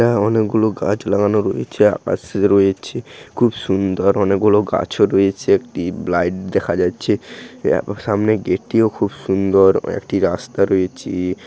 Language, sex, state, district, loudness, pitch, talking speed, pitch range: Bengali, male, West Bengal, Dakshin Dinajpur, -17 LUFS, 100 Hz, 150 wpm, 95-105 Hz